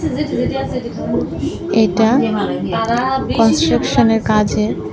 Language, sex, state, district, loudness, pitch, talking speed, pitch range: Bengali, female, Tripura, West Tripura, -16 LUFS, 225 Hz, 35 wpm, 215-235 Hz